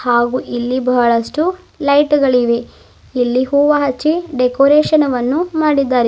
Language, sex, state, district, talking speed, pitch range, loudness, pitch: Kannada, female, Karnataka, Bidar, 110 wpm, 245-295 Hz, -14 LUFS, 270 Hz